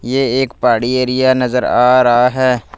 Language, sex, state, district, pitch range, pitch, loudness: Hindi, male, Punjab, Fazilka, 125-130 Hz, 125 Hz, -13 LUFS